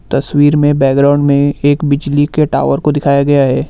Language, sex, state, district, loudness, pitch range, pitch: Hindi, male, Assam, Kamrup Metropolitan, -11 LUFS, 140-145 Hz, 145 Hz